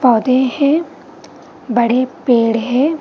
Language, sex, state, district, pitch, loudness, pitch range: Hindi, female, Bihar, Vaishali, 255 Hz, -15 LUFS, 240-280 Hz